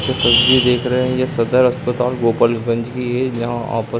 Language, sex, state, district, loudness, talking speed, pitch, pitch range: Hindi, male, Uttar Pradesh, Hamirpur, -16 LUFS, 195 wpm, 125 Hz, 115-125 Hz